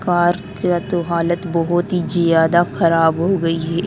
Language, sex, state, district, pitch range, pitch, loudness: Hindi, female, Delhi, New Delhi, 165-175 Hz, 175 Hz, -17 LUFS